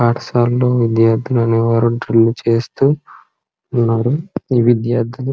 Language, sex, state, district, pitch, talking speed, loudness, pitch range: Telugu, male, Andhra Pradesh, Srikakulam, 120 Hz, 65 wpm, -15 LUFS, 115-125 Hz